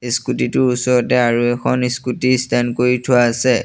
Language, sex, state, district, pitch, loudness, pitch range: Assamese, male, Assam, Sonitpur, 125 Hz, -16 LUFS, 120-125 Hz